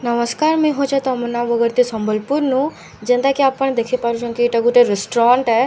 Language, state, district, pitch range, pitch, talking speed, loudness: Sambalpuri, Odisha, Sambalpur, 235-270 Hz, 245 Hz, 180 wpm, -17 LUFS